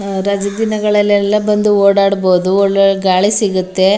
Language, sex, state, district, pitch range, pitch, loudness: Kannada, female, Karnataka, Mysore, 195-205 Hz, 200 Hz, -13 LUFS